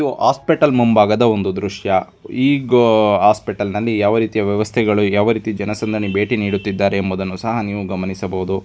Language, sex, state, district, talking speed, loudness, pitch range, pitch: Kannada, male, Karnataka, Dharwad, 140 wpm, -17 LUFS, 100-115 Hz, 105 Hz